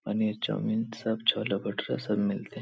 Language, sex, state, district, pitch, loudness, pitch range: Hindi, male, Bihar, Supaul, 110 Hz, -30 LUFS, 105-110 Hz